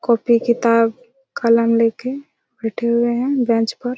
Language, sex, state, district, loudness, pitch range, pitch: Hindi, female, Chhattisgarh, Raigarh, -18 LUFS, 230-250 Hz, 235 Hz